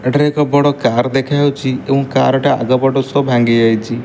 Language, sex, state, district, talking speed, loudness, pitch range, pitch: Odia, male, Odisha, Malkangiri, 195 wpm, -14 LUFS, 125-145 Hz, 135 Hz